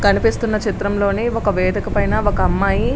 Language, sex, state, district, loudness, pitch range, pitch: Telugu, female, Andhra Pradesh, Srikakulam, -18 LUFS, 200-225 Hz, 205 Hz